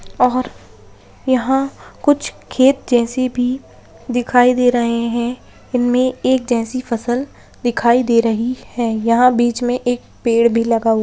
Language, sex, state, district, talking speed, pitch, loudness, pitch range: Hindi, female, Bihar, Lakhisarai, 145 wpm, 245 Hz, -17 LUFS, 235-255 Hz